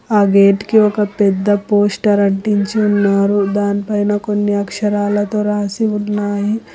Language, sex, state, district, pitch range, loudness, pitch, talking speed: Telugu, female, Telangana, Hyderabad, 200-210 Hz, -15 LUFS, 205 Hz, 115 wpm